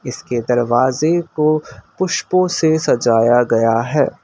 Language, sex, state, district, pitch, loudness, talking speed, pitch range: Hindi, male, Assam, Kamrup Metropolitan, 135 Hz, -16 LUFS, 115 wpm, 120-160 Hz